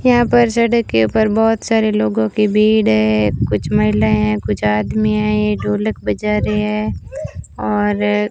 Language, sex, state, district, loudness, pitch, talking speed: Hindi, female, Rajasthan, Bikaner, -16 LUFS, 105 Hz, 175 wpm